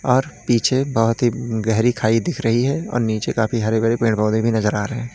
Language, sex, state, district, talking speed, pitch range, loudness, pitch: Hindi, male, Uttar Pradesh, Lalitpur, 235 wpm, 110-120 Hz, -19 LUFS, 115 Hz